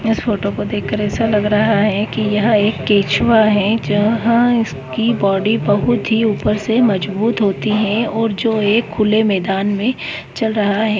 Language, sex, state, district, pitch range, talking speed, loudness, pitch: Hindi, male, West Bengal, Paschim Medinipur, 205-225 Hz, 175 wpm, -16 LUFS, 215 Hz